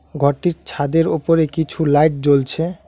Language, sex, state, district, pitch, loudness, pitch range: Bengali, male, West Bengal, Alipurduar, 160 Hz, -17 LUFS, 145-165 Hz